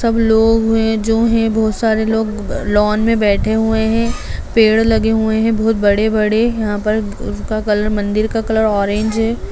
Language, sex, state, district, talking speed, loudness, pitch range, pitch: Hindi, female, Bihar, Jamui, 175 wpm, -15 LUFS, 215-225 Hz, 220 Hz